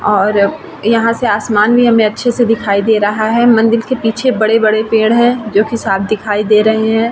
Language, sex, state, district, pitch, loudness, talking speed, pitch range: Hindi, female, Bihar, Vaishali, 220 Hz, -12 LUFS, 220 wpm, 210-230 Hz